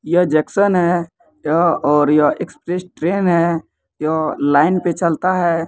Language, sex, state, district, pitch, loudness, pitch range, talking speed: Maithili, male, Bihar, Kishanganj, 170 Hz, -17 LUFS, 155-180 Hz, 150 wpm